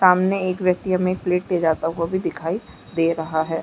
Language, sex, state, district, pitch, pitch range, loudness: Hindi, female, Chhattisgarh, Bastar, 180 Hz, 165-185 Hz, -22 LUFS